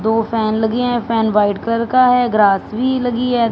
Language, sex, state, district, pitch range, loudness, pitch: Hindi, female, Punjab, Fazilka, 220-245 Hz, -16 LUFS, 230 Hz